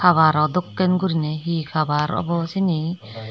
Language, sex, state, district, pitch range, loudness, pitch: Chakma, female, Tripura, Dhalai, 155-180 Hz, -21 LUFS, 165 Hz